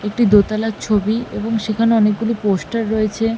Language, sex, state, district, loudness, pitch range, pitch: Bengali, female, West Bengal, Malda, -17 LUFS, 210-225 Hz, 220 Hz